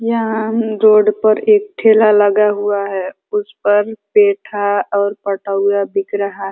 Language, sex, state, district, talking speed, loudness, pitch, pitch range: Hindi, female, Uttar Pradesh, Ghazipur, 145 wpm, -14 LUFS, 205 Hz, 200-220 Hz